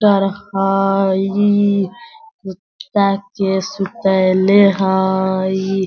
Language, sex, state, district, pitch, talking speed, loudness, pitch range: Hindi, male, Bihar, Sitamarhi, 195 Hz, 40 wpm, -16 LUFS, 190-200 Hz